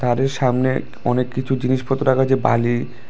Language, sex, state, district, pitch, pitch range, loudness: Bengali, male, Tripura, West Tripura, 130 Hz, 125-130 Hz, -19 LUFS